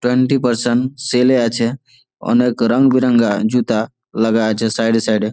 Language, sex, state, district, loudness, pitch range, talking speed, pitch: Bengali, male, West Bengal, Malda, -16 LUFS, 115-125 Hz, 170 wpm, 120 Hz